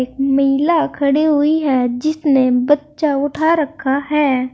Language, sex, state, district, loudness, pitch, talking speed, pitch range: Hindi, female, Uttar Pradesh, Saharanpur, -16 LUFS, 285 Hz, 130 wpm, 270-305 Hz